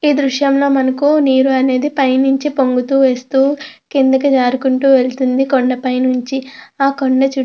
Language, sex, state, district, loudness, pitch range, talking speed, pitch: Telugu, female, Andhra Pradesh, Krishna, -14 LUFS, 260-275 Hz, 135 wpm, 270 Hz